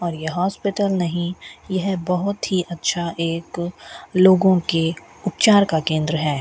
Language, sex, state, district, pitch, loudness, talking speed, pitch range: Hindi, female, Rajasthan, Bikaner, 175 Hz, -20 LUFS, 140 wpm, 165-190 Hz